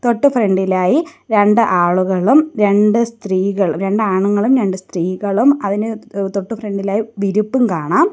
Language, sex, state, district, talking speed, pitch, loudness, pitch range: Malayalam, female, Kerala, Kollam, 125 wpm, 205 Hz, -15 LUFS, 195-230 Hz